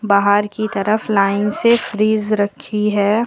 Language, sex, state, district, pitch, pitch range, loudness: Hindi, female, Uttar Pradesh, Lucknow, 210 Hz, 205-215 Hz, -17 LUFS